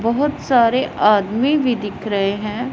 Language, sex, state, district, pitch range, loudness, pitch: Hindi, female, Punjab, Pathankot, 210-260 Hz, -18 LUFS, 230 Hz